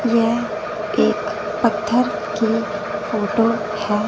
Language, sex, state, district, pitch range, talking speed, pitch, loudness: Hindi, female, Punjab, Fazilka, 210-225 Hz, 90 wpm, 210 Hz, -20 LUFS